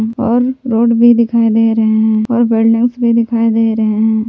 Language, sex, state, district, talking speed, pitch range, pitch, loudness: Hindi, female, Jharkhand, Palamu, 195 wpm, 220-235 Hz, 230 Hz, -12 LUFS